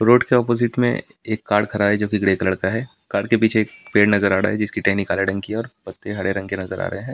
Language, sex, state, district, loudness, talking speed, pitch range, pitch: Hindi, male, Delhi, New Delhi, -20 LUFS, 330 wpm, 100-115 Hz, 105 Hz